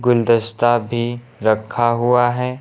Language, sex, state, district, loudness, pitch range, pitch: Hindi, male, Uttar Pradesh, Lucknow, -17 LUFS, 115-120 Hz, 120 Hz